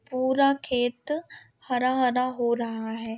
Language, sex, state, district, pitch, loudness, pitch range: Hindi, female, Maharashtra, Pune, 250 Hz, -26 LUFS, 235-260 Hz